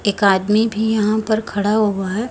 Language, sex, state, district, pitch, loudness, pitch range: Hindi, female, Chhattisgarh, Raipur, 210 Hz, -17 LUFS, 205-220 Hz